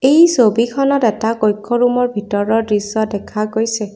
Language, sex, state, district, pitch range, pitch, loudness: Assamese, female, Assam, Kamrup Metropolitan, 210-245 Hz, 225 Hz, -15 LUFS